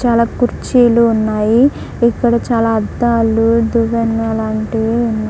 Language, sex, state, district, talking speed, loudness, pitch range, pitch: Telugu, female, Andhra Pradesh, Krishna, 100 wpm, -14 LUFS, 225-235 Hz, 230 Hz